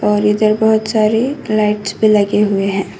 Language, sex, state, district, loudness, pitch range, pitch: Hindi, female, Karnataka, Koppal, -14 LUFS, 205-215 Hz, 210 Hz